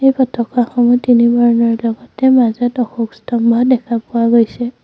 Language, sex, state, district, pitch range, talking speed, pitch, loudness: Assamese, female, Assam, Sonitpur, 235-245 Hz, 125 wpm, 240 Hz, -14 LUFS